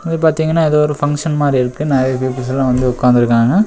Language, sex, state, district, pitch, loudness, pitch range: Tamil, male, Tamil Nadu, Nilgiris, 140 Hz, -14 LUFS, 125-155 Hz